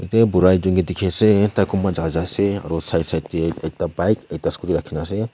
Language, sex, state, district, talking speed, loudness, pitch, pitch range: Nagamese, male, Nagaland, Kohima, 245 wpm, -20 LUFS, 95 Hz, 80-100 Hz